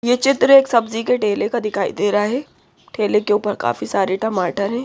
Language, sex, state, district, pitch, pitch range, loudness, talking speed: Hindi, female, Haryana, Rohtak, 210 Hz, 205-240 Hz, -18 LUFS, 220 wpm